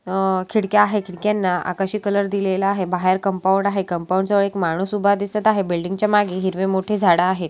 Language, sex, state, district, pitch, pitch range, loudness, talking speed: Marathi, female, Maharashtra, Solapur, 195 Hz, 185-200 Hz, -19 LUFS, 200 wpm